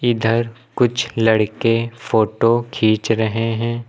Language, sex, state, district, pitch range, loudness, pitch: Hindi, male, Uttar Pradesh, Lucknow, 110-120 Hz, -18 LUFS, 115 Hz